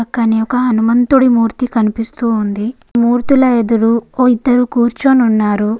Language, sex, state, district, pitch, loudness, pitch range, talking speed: Telugu, female, Andhra Pradesh, Guntur, 235 Hz, -13 LUFS, 225-250 Hz, 115 wpm